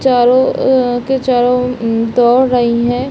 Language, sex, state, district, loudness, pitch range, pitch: Hindi, female, Bihar, Samastipur, -12 LUFS, 240-260 Hz, 250 Hz